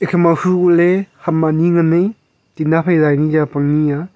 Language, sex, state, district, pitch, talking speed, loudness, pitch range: Wancho, male, Arunachal Pradesh, Longding, 165 Hz, 200 wpm, -14 LUFS, 155-175 Hz